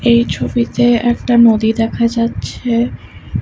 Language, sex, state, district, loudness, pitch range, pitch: Bengali, female, West Bengal, Kolkata, -14 LUFS, 225-235 Hz, 235 Hz